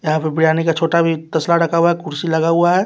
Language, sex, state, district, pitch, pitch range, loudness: Hindi, male, Bihar, West Champaran, 165 Hz, 160-170 Hz, -16 LUFS